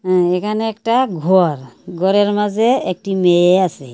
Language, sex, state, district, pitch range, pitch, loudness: Bengali, female, Tripura, Unakoti, 175-210 Hz, 185 Hz, -15 LUFS